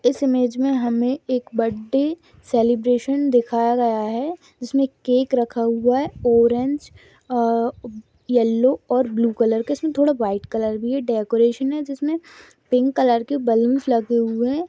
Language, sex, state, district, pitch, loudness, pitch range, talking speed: Hindi, female, Rajasthan, Nagaur, 245 Hz, -20 LUFS, 235-270 Hz, 150 wpm